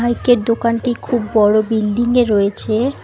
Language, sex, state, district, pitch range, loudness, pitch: Bengali, female, West Bengal, Alipurduar, 215-240 Hz, -16 LUFS, 230 Hz